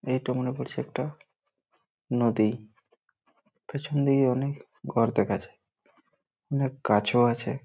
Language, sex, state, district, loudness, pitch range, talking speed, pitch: Bengali, male, West Bengal, Malda, -27 LUFS, 120-140 Hz, 110 wpm, 130 Hz